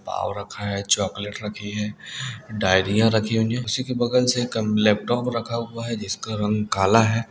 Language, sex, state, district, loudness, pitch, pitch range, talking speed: Hindi, male, Bihar, Muzaffarpur, -23 LUFS, 110 Hz, 105-115 Hz, 190 wpm